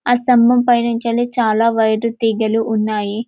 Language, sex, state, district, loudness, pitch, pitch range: Telugu, female, Telangana, Karimnagar, -15 LUFS, 230 Hz, 220-240 Hz